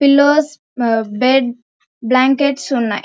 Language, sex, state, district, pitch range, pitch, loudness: Telugu, female, Andhra Pradesh, Krishna, 240-280 Hz, 255 Hz, -15 LUFS